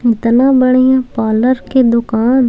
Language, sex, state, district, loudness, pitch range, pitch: Maithili, female, Bihar, Samastipur, -12 LUFS, 235-260 Hz, 250 Hz